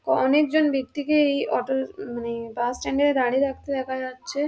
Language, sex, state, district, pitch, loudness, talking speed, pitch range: Bengali, female, West Bengal, Dakshin Dinajpur, 270 Hz, -24 LUFS, 200 wpm, 255-290 Hz